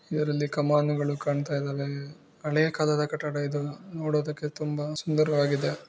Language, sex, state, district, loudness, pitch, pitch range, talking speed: Kannada, female, Karnataka, Bijapur, -28 LUFS, 150 Hz, 145-155 Hz, 110 wpm